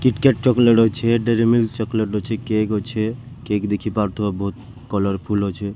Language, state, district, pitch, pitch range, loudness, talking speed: Sambalpuri, Odisha, Sambalpur, 110 Hz, 105-115 Hz, -20 LUFS, 155 wpm